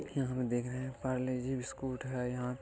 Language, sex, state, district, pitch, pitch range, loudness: Hindi, male, Bihar, Jamui, 130 Hz, 125-130 Hz, -37 LUFS